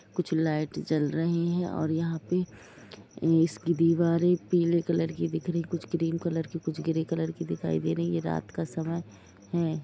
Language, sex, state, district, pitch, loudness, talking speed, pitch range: Hindi, female, Jharkhand, Jamtara, 165 Hz, -29 LUFS, 190 wpm, 160-170 Hz